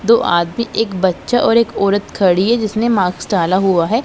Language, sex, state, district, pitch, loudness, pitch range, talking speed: Hindi, female, Punjab, Pathankot, 205 Hz, -15 LUFS, 185-230 Hz, 205 wpm